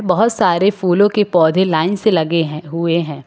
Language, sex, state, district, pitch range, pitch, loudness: Hindi, female, Uttar Pradesh, Lucknow, 165-205 Hz, 180 Hz, -15 LUFS